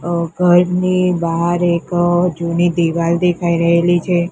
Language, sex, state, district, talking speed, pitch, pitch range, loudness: Gujarati, female, Gujarat, Gandhinagar, 110 wpm, 175 Hz, 170-175 Hz, -15 LUFS